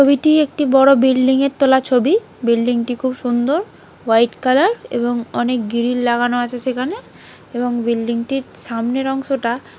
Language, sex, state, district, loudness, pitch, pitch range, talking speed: Bengali, female, West Bengal, Dakshin Dinajpur, -17 LUFS, 255 Hz, 240-270 Hz, 140 wpm